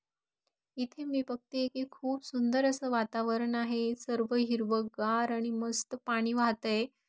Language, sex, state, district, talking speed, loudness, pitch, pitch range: Marathi, female, Maharashtra, Aurangabad, 125 wpm, -33 LUFS, 235 Hz, 230-260 Hz